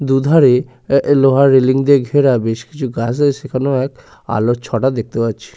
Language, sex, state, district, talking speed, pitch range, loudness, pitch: Bengali, male, West Bengal, Purulia, 185 wpm, 120-140 Hz, -14 LUFS, 130 Hz